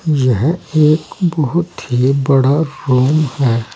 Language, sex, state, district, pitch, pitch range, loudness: Hindi, male, Uttar Pradesh, Saharanpur, 145 Hz, 130-155 Hz, -15 LUFS